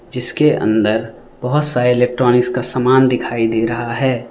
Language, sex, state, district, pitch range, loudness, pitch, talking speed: Hindi, male, Arunachal Pradesh, Lower Dibang Valley, 115-130 Hz, -15 LUFS, 125 Hz, 155 wpm